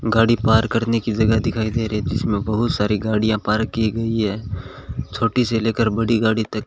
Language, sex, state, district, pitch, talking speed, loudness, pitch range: Hindi, male, Rajasthan, Bikaner, 110 Hz, 190 wpm, -20 LUFS, 105-115 Hz